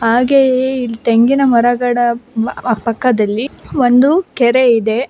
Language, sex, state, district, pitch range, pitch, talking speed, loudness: Kannada, female, Karnataka, Bangalore, 230-260 Hz, 245 Hz, 95 wpm, -13 LUFS